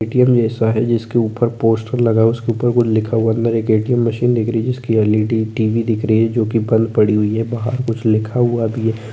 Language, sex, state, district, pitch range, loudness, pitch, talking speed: Hindi, male, Chhattisgarh, Korba, 110-120 Hz, -16 LUFS, 115 Hz, 130 wpm